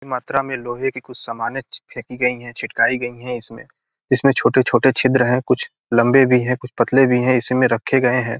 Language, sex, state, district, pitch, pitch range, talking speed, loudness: Hindi, male, Bihar, Gopalganj, 125 Hz, 120-130 Hz, 220 wpm, -18 LUFS